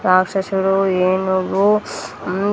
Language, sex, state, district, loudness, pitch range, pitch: Telugu, female, Andhra Pradesh, Sri Satya Sai, -18 LUFS, 185-195 Hz, 190 Hz